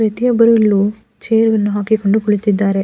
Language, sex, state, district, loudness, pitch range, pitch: Kannada, female, Karnataka, Mysore, -14 LUFS, 205-225 Hz, 210 Hz